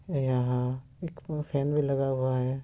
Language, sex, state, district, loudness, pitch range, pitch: Hindi, male, Bihar, Sitamarhi, -29 LUFS, 130-150 Hz, 135 Hz